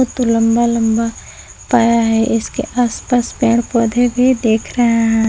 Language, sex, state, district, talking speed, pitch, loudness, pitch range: Hindi, female, Jharkhand, Palamu, 150 wpm, 230 Hz, -15 LUFS, 225-240 Hz